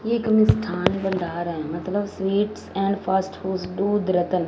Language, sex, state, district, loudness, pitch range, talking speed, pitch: Hindi, female, Punjab, Fazilka, -23 LUFS, 180-205 Hz, 145 wpm, 190 Hz